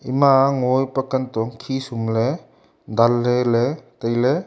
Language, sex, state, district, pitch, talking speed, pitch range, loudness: Wancho, male, Arunachal Pradesh, Longding, 125 Hz, 135 wpm, 115-135 Hz, -20 LUFS